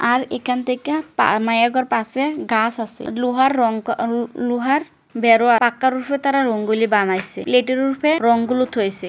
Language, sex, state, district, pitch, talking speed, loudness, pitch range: Bengali, female, West Bengal, Kolkata, 245 Hz, 160 wpm, -19 LUFS, 230-260 Hz